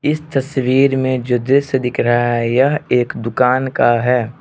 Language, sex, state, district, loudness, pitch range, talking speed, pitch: Hindi, male, Arunachal Pradesh, Lower Dibang Valley, -16 LUFS, 120-135 Hz, 175 wpm, 130 Hz